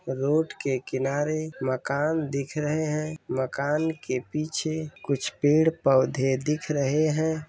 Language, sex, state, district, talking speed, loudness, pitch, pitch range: Hindi, male, Bihar, Darbhanga, 130 wpm, -26 LUFS, 150 Hz, 135-155 Hz